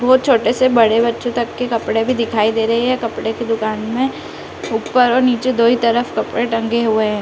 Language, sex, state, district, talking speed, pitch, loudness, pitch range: Hindi, female, Uttarakhand, Uttarkashi, 225 wpm, 235 Hz, -16 LUFS, 225-245 Hz